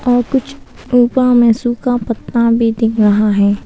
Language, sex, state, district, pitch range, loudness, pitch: Hindi, female, Arunachal Pradesh, Papum Pare, 225-245 Hz, -13 LUFS, 240 Hz